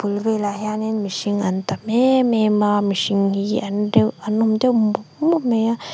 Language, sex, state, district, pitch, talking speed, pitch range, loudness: Mizo, female, Mizoram, Aizawl, 215 Hz, 200 wpm, 205-225 Hz, -19 LUFS